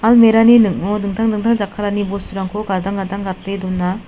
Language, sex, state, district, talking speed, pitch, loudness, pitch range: Garo, female, Meghalaya, South Garo Hills, 130 wpm, 200 Hz, -16 LUFS, 195-220 Hz